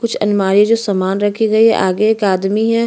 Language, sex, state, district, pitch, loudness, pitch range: Hindi, female, Chhattisgarh, Bastar, 210 Hz, -14 LUFS, 195-220 Hz